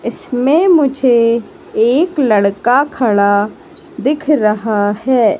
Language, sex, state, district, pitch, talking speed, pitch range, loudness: Hindi, female, Madhya Pradesh, Katni, 255 Hz, 90 wpm, 215-305 Hz, -13 LUFS